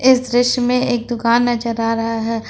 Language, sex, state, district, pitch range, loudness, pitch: Hindi, female, Jharkhand, Ranchi, 230-245 Hz, -17 LUFS, 240 Hz